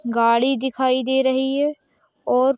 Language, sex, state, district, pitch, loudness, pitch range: Hindi, female, Jharkhand, Sahebganj, 265 Hz, -20 LUFS, 255-275 Hz